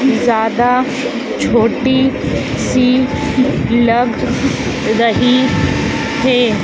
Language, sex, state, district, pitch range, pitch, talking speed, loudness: Hindi, female, Madhya Pradesh, Dhar, 235-260 Hz, 250 Hz, 55 wpm, -14 LUFS